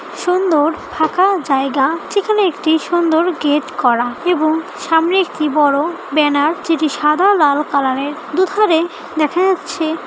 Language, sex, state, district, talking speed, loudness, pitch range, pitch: Bengali, female, West Bengal, Dakshin Dinajpur, 145 wpm, -15 LUFS, 295-360 Hz, 320 Hz